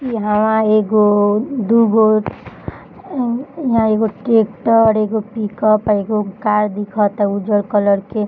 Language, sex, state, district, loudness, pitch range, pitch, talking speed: Bhojpuri, female, Bihar, Gopalganj, -15 LUFS, 210-225 Hz, 215 Hz, 115 wpm